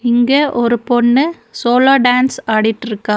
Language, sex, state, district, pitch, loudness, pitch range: Tamil, female, Tamil Nadu, Nilgiris, 240 Hz, -13 LUFS, 235-265 Hz